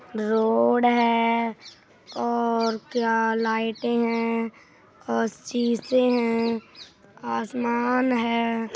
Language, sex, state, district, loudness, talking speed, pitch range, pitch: Hindi, female, Uttar Pradesh, Budaun, -24 LUFS, 75 wpm, 225-235 Hz, 230 Hz